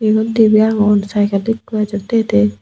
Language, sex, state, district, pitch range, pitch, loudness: Chakma, female, Tripura, Unakoti, 205-220 Hz, 215 Hz, -14 LUFS